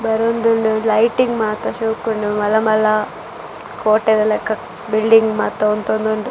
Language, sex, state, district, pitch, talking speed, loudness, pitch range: Tulu, female, Karnataka, Dakshina Kannada, 220 Hz, 115 wpm, -17 LUFS, 215-225 Hz